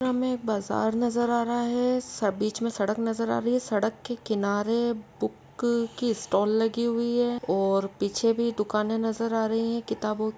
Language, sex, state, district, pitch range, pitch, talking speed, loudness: Hindi, female, Uttar Pradesh, Etah, 215-235 Hz, 225 Hz, 195 wpm, -27 LUFS